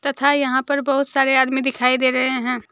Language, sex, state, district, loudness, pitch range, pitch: Hindi, female, Jharkhand, Deoghar, -18 LUFS, 255-280 Hz, 265 Hz